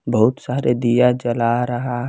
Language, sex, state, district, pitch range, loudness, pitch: Hindi, female, Bihar, West Champaran, 120-125 Hz, -18 LUFS, 120 Hz